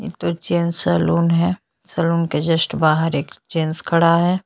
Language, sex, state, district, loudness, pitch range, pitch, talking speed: Hindi, female, Chhattisgarh, Sukma, -19 LUFS, 160-170 Hz, 170 Hz, 175 wpm